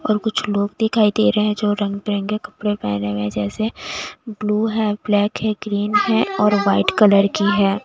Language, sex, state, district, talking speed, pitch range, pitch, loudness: Hindi, female, Bihar, West Champaran, 200 wpm, 200-215 Hz, 210 Hz, -19 LUFS